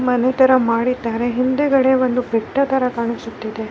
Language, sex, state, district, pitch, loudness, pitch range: Kannada, female, Karnataka, Raichur, 250 Hz, -18 LUFS, 230-260 Hz